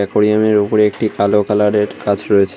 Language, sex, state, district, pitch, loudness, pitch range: Bengali, male, West Bengal, Cooch Behar, 105 Hz, -14 LUFS, 100-105 Hz